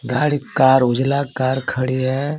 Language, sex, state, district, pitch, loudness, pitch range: Hindi, male, Jharkhand, Garhwa, 130 Hz, -18 LUFS, 130-140 Hz